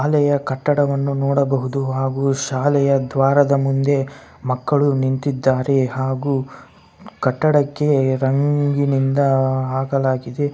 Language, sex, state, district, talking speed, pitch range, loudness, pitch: Kannada, male, Karnataka, Bellary, 75 wpm, 130-140 Hz, -18 LUFS, 135 Hz